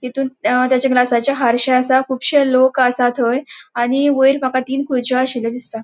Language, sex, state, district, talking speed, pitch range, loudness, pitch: Konkani, female, Goa, North and South Goa, 175 wpm, 245-265 Hz, -16 LUFS, 255 Hz